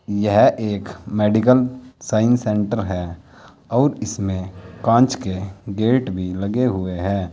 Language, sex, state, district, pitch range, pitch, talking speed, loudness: Hindi, male, Uttar Pradesh, Saharanpur, 95-115 Hz, 100 Hz, 125 wpm, -20 LUFS